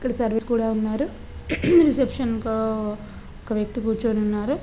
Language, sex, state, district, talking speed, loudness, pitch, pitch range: Telugu, female, Telangana, Nalgonda, 140 wpm, -23 LUFS, 225 Hz, 220-255 Hz